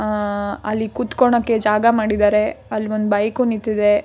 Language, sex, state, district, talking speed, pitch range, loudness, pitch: Kannada, female, Karnataka, Shimoga, 135 wpm, 210-230 Hz, -18 LUFS, 215 Hz